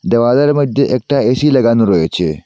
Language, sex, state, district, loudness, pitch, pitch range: Bengali, male, Assam, Hailakandi, -12 LUFS, 125 Hz, 115-140 Hz